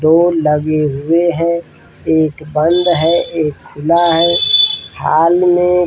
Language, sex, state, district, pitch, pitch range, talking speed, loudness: Hindi, male, Bihar, Saran, 165 Hz, 155-175 Hz, 135 wpm, -13 LUFS